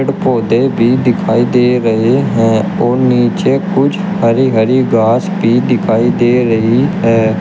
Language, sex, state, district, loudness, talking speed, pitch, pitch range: Hindi, male, Uttar Pradesh, Shamli, -11 LUFS, 140 wpm, 120 Hz, 115-125 Hz